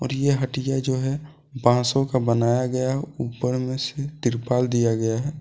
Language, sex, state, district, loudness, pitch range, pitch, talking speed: Hindi, male, Jharkhand, Deoghar, -23 LUFS, 120-135 Hz, 130 Hz, 190 wpm